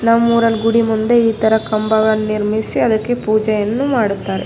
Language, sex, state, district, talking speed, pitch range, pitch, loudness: Kannada, female, Karnataka, Raichur, 120 wpm, 215-230 Hz, 220 Hz, -15 LUFS